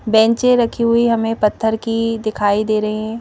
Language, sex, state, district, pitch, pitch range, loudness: Hindi, female, Madhya Pradesh, Bhopal, 225 Hz, 215-230 Hz, -16 LUFS